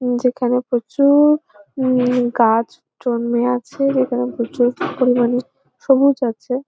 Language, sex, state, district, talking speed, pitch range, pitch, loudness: Bengali, female, West Bengal, Jhargram, 100 wpm, 240-270 Hz, 250 Hz, -17 LUFS